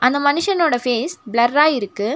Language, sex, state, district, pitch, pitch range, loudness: Tamil, female, Tamil Nadu, Nilgiris, 250 Hz, 235-295 Hz, -17 LUFS